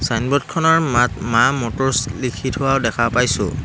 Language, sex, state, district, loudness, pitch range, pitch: Assamese, male, Assam, Hailakandi, -18 LUFS, 115-135 Hz, 125 Hz